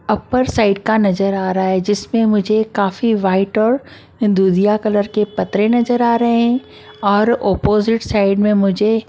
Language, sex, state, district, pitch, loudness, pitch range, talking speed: Hindi, female, Maharashtra, Mumbai Suburban, 210 Hz, -16 LUFS, 200-230 Hz, 170 wpm